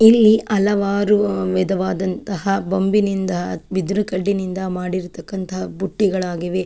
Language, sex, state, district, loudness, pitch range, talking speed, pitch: Kannada, female, Karnataka, Chamarajanagar, -19 LUFS, 185-200 Hz, 70 wpm, 190 Hz